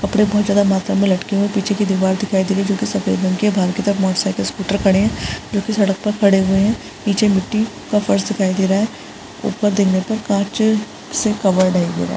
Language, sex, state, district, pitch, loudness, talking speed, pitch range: Hindi, female, Rajasthan, Churu, 200 Hz, -17 LUFS, 260 wpm, 190-210 Hz